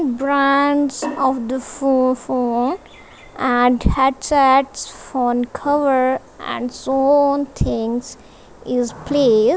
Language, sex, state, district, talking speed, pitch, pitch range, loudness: English, female, Punjab, Kapurthala, 90 wpm, 265 Hz, 250-280 Hz, -18 LUFS